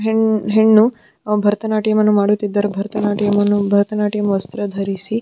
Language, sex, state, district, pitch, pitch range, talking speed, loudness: Kannada, female, Karnataka, Dharwad, 210 Hz, 205-215 Hz, 80 wpm, -16 LUFS